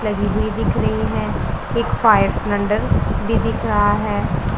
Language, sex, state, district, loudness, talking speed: Hindi, female, Punjab, Pathankot, -19 LUFS, 155 wpm